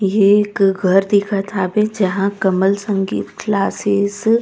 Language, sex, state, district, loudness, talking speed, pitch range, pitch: Chhattisgarhi, female, Chhattisgarh, Raigarh, -16 LUFS, 135 wpm, 195-205 Hz, 200 Hz